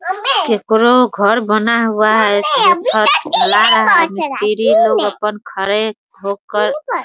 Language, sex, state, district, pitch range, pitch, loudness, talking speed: Hindi, female, Bihar, Muzaffarpur, 210-250 Hz, 220 Hz, -13 LUFS, 135 wpm